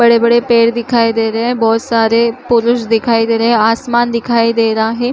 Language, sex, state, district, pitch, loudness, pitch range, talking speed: Chhattisgarhi, female, Chhattisgarh, Rajnandgaon, 230 Hz, -12 LUFS, 225-235 Hz, 220 wpm